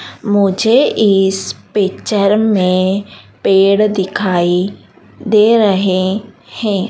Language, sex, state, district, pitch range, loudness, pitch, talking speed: Hindi, female, Madhya Pradesh, Dhar, 190-210 Hz, -13 LUFS, 200 Hz, 80 wpm